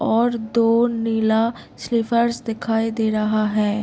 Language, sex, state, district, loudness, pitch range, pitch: Hindi, female, Bihar, Gopalganj, -20 LUFS, 220-235 Hz, 225 Hz